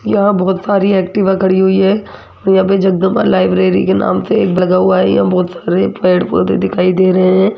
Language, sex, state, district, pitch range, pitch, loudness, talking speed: Hindi, female, Rajasthan, Jaipur, 185-195 Hz, 190 Hz, -12 LUFS, 205 wpm